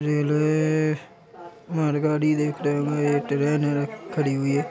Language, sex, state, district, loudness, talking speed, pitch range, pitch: Hindi, male, Chhattisgarh, Korba, -24 LUFS, 155 wpm, 145-155 Hz, 150 Hz